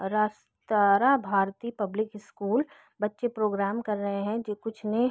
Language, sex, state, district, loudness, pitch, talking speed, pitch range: Hindi, female, Bihar, East Champaran, -28 LUFS, 210 Hz, 150 wpm, 200-230 Hz